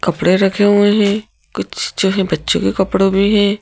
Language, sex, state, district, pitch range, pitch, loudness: Hindi, female, Madhya Pradesh, Bhopal, 190-205 Hz, 200 Hz, -14 LUFS